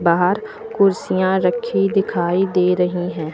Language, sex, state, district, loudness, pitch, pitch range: Hindi, female, Uttar Pradesh, Lucknow, -18 LUFS, 185 Hz, 175-195 Hz